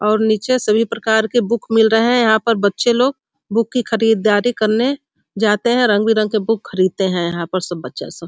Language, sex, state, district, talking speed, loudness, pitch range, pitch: Hindi, female, Bihar, Sitamarhi, 210 wpm, -16 LUFS, 210-235 Hz, 220 Hz